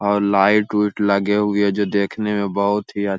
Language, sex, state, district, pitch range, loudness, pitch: Hindi, male, Uttar Pradesh, Hamirpur, 100-105 Hz, -18 LUFS, 100 Hz